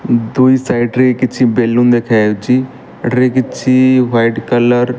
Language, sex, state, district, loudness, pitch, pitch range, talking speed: Odia, male, Odisha, Malkangiri, -12 LUFS, 120 Hz, 120-130 Hz, 130 wpm